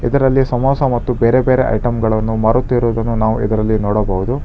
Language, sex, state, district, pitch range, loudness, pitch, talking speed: Kannada, male, Karnataka, Bangalore, 110-130 Hz, -15 LUFS, 115 Hz, 150 wpm